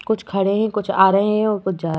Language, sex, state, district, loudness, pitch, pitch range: Hindi, female, Uttar Pradesh, Varanasi, -18 LUFS, 200 Hz, 190-210 Hz